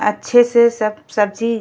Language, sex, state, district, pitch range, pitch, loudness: Bhojpuri, female, Uttar Pradesh, Ghazipur, 210-235 Hz, 230 Hz, -15 LUFS